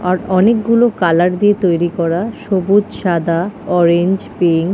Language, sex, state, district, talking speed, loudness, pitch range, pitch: Bengali, female, West Bengal, Kolkata, 150 wpm, -14 LUFS, 170-205 Hz, 180 Hz